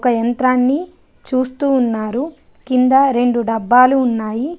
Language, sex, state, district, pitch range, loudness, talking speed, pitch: Telugu, female, Telangana, Adilabad, 240-265 Hz, -15 LUFS, 105 wpm, 255 Hz